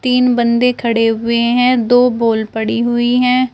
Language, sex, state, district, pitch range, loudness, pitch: Hindi, female, Uttar Pradesh, Shamli, 230-250 Hz, -13 LUFS, 240 Hz